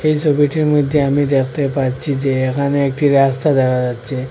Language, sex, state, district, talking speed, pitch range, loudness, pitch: Bengali, male, Assam, Hailakandi, 165 wpm, 130-145 Hz, -16 LUFS, 140 Hz